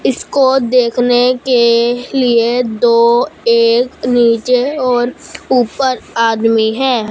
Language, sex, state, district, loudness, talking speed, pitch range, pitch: Hindi, female, Punjab, Fazilka, -12 LUFS, 95 wpm, 235-260 Hz, 245 Hz